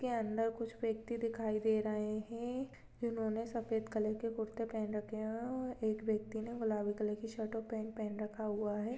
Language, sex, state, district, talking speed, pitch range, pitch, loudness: Hindi, female, Bihar, Madhepura, 200 wpm, 215-230 Hz, 220 Hz, -39 LUFS